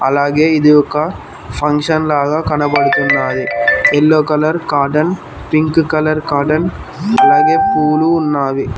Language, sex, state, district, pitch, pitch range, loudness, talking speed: Telugu, male, Telangana, Mahabubabad, 155 Hz, 145-160 Hz, -13 LUFS, 100 wpm